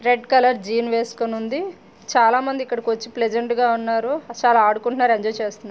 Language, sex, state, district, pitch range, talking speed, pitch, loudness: Telugu, female, Andhra Pradesh, Srikakulam, 225-245 Hz, 170 wpm, 235 Hz, -20 LUFS